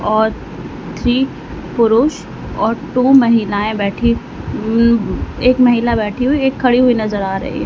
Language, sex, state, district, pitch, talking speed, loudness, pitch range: Hindi, female, Uttar Pradesh, Lalitpur, 235 Hz, 150 wpm, -15 LUFS, 220-255 Hz